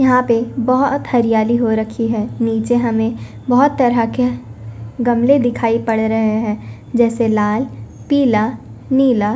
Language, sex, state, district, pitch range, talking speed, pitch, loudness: Hindi, female, Punjab, Fazilka, 215-245 Hz, 135 wpm, 230 Hz, -16 LUFS